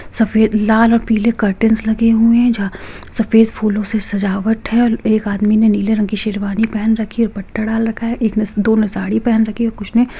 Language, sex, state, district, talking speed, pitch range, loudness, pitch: Hindi, female, Bihar, Gopalganj, 230 wpm, 210-225 Hz, -15 LUFS, 220 Hz